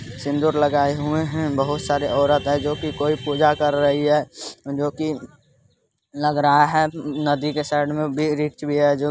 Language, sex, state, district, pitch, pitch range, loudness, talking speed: Hindi, male, Bihar, Supaul, 145 Hz, 145-150 Hz, -21 LUFS, 190 wpm